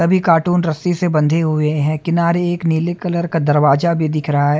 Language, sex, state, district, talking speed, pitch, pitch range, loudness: Hindi, male, Haryana, Charkhi Dadri, 220 wpm, 165 Hz, 155-175 Hz, -16 LUFS